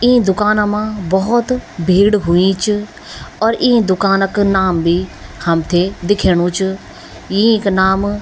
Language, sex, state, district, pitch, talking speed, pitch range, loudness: Garhwali, female, Uttarakhand, Tehri Garhwal, 195 Hz, 140 wpm, 185-210 Hz, -14 LUFS